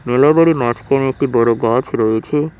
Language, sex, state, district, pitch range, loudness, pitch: Bengali, male, West Bengal, Cooch Behar, 120-150 Hz, -15 LUFS, 130 Hz